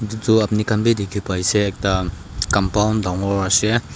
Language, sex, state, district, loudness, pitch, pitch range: Nagamese, male, Nagaland, Dimapur, -19 LUFS, 100 Hz, 95-110 Hz